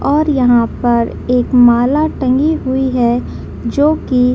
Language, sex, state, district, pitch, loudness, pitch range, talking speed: Hindi, female, Bihar, Madhepura, 250 Hz, -13 LUFS, 240-285 Hz, 150 wpm